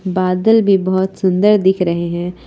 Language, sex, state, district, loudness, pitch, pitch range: Hindi, female, Jharkhand, Palamu, -14 LUFS, 185 Hz, 180-195 Hz